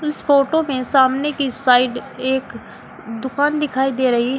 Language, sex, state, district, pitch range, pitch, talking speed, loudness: Hindi, female, Uttar Pradesh, Shamli, 255-285 Hz, 265 Hz, 165 wpm, -18 LUFS